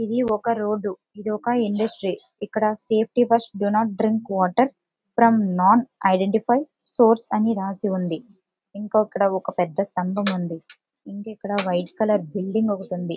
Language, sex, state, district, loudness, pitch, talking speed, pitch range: Telugu, female, Andhra Pradesh, Visakhapatnam, -22 LUFS, 210 Hz, 140 wpm, 190-225 Hz